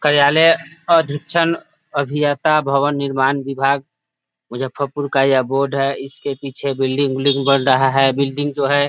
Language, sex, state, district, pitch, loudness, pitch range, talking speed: Hindi, male, Bihar, Muzaffarpur, 140 Hz, -17 LUFS, 135-145 Hz, 150 wpm